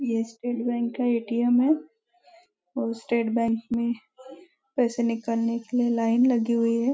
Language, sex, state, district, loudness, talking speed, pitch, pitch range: Hindi, female, Maharashtra, Nagpur, -25 LUFS, 155 wpm, 235 Hz, 230-250 Hz